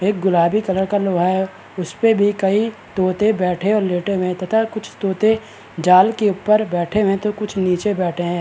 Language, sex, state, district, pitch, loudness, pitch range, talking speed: Hindi, male, Chhattisgarh, Balrampur, 195 Hz, -18 LUFS, 185-210 Hz, 215 wpm